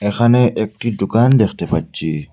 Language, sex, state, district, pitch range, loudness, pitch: Bengali, male, Assam, Hailakandi, 95-120 Hz, -16 LUFS, 110 Hz